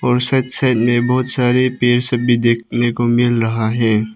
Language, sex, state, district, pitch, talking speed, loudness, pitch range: Hindi, male, Arunachal Pradesh, Papum Pare, 120 Hz, 160 wpm, -15 LUFS, 120-125 Hz